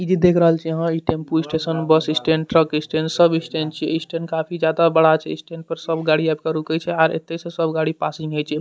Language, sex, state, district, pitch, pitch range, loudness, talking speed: Maithili, male, Bihar, Madhepura, 160 Hz, 160-165 Hz, -20 LUFS, 265 wpm